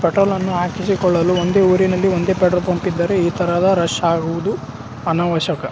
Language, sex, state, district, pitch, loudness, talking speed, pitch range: Kannada, male, Karnataka, Raichur, 180 Hz, -17 LUFS, 145 wpm, 170-185 Hz